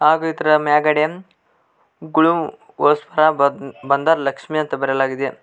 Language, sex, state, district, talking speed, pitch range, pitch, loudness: Kannada, male, Karnataka, Koppal, 90 wpm, 140-160 Hz, 150 Hz, -18 LUFS